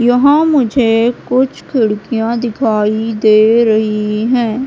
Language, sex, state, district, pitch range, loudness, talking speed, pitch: Hindi, female, Madhya Pradesh, Katni, 220-250 Hz, -13 LUFS, 105 wpm, 230 Hz